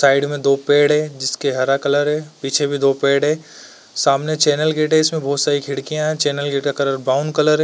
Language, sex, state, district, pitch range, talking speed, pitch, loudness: Hindi, male, Uttar Pradesh, Varanasi, 140-150 Hz, 235 wpm, 145 Hz, -17 LUFS